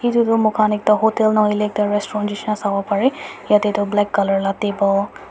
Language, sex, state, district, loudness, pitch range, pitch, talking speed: Nagamese, female, Nagaland, Dimapur, -18 LUFS, 205-215 Hz, 210 Hz, 225 wpm